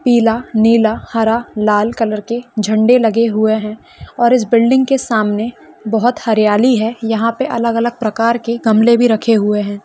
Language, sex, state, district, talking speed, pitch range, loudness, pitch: Hindi, female, Uttarakhand, Uttarkashi, 175 wpm, 220-235 Hz, -14 LUFS, 225 Hz